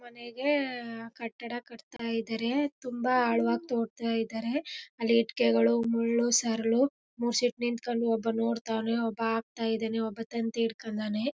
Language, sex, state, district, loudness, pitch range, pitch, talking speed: Kannada, female, Karnataka, Mysore, -30 LUFS, 225-240 Hz, 230 Hz, 125 wpm